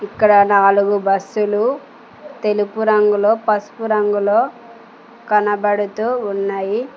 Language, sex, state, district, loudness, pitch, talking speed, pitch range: Telugu, female, Telangana, Mahabubabad, -16 LUFS, 210 Hz, 75 wpm, 205-225 Hz